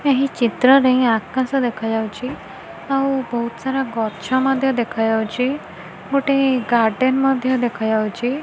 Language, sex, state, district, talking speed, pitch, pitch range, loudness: Odia, female, Odisha, Khordha, 105 wpm, 250 Hz, 225-270 Hz, -19 LUFS